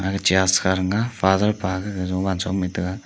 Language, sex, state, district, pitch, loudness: Wancho, male, Arunachal Pradesh, Longding, 95 Hz, -21 LUFS